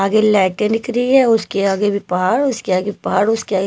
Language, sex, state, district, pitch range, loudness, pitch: Hindi, female, Himachal Pradesh, Shimla, 195-225 Hz, -16 LUFS, 205 Hz